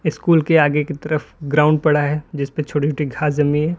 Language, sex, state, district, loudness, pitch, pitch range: Hindi, male, Uttar Pradesh, Lalitpur, -18 LUFS, 150 Hz, 145-155 Hz